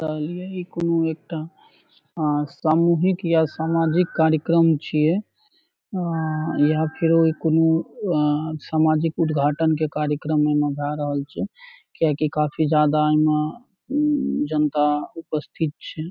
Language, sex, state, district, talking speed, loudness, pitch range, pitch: Maithili, male, Bihar, Saharsa, 110 wpm, -22 LUFS, 150-165 Hz, 160 Hz